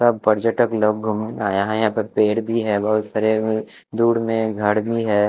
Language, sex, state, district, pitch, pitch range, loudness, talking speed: Hindi, male, Chhattisgarh, Raipur, 110 Hz, 105-115 Hz, -20 LUFS, 205 wpm